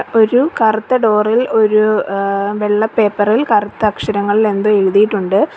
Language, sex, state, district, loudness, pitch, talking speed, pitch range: Malayalam, female, Kerala, Kollam, -14 LUFS, 215 Hz, 140 wpm, 205-220 Hz